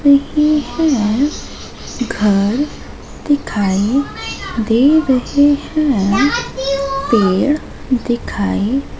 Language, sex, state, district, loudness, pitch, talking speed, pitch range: Hindi, female, Madhya Pradesh, Katni, -16 LUFS, 270 Hz, 55 wpm, 220-290 Hz